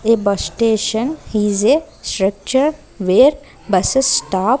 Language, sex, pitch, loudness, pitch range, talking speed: English, female, 225 Hz, -16 LUFS, 205-275 Hz, 115 wpm